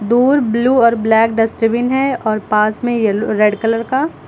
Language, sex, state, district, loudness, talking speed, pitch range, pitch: Hindi, female, Uttar Pradesh, Lucknow, -14 LUFS, 170 wpm, 220-245 Hz, 230 Hz